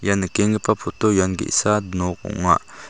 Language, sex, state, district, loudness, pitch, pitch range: Garo, male, Meghalaya, South Garo Hills, -20 LUFS, 100 Hz, 90-105 Hz